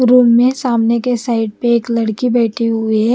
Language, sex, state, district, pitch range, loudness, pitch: Hindi, female, Bihar, West Champaran, 225-245 Hz, -14 LUFS, 235 Hz